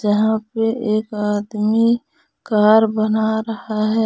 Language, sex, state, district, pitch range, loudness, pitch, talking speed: Hindi, female, Jharkhand, Garhwa, 215-225 Hz, -18 LUFS, 220 Hz, 120 wpm